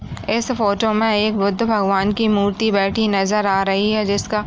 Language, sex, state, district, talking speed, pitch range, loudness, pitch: Hindi, female, Uttar Pradesh, Budaun, 200 wpm, 200-215 Hz, -18 LUFS, 210 Hz